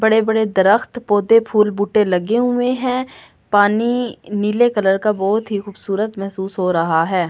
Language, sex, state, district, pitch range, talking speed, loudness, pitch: Hindi, female, Delhi, New Delhi, 195-230 Hz, 155 wpm, -17 LUFS, 210 Hz